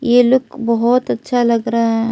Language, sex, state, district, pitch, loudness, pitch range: Hindi, female, Delhi, New Delhi, 235 Hz, -15 LUFS, 230-245 Hz